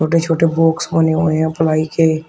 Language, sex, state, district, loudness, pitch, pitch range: Hindi, male, Uttar Pradesh, Shamli, -15 LUFS, 160 Hz, 160-165 Hz